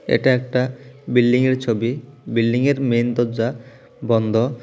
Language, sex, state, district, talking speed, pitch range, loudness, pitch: Bengali, male, Tripura, South Tripura, 105 wpm, 115-130 Hz, -19 LUFS, 125 Hz